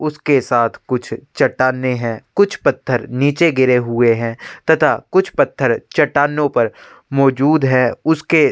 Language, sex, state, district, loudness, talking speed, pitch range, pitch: Hindi, male, Chhattisgarh, Sukma, -16 LUFS, 140 wpm, 120-155 Hz, 135 Hz